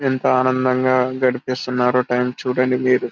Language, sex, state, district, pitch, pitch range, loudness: Telugu, male, Telangana, Karimnagar, 130 Hz, 125-130 Hz, -18 LUFS